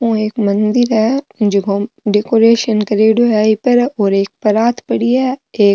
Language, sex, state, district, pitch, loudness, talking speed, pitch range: Marwari, female, Rajasthan, Nagaur, 220 Hz, -14 LUFS, 175 wpm, 210-240 Hz